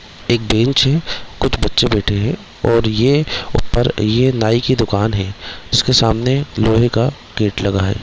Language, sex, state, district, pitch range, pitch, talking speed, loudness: Hindi, male, Bihar, Gaya, 105-130 Hz, 115 Hz, 170 wpm, -16 LUFS